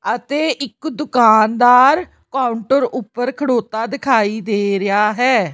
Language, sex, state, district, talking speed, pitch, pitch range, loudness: Punjabi, female, Chandigarh, Chandigarh, 110 wpm, 245 Hz, 220-270 Hz, -16 LUFS